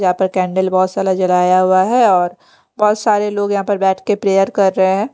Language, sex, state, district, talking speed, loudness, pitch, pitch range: Hindi, female, Bihar, Patna, 235 wpm, -14 LUFS, 190 Hz, 185-205 Hz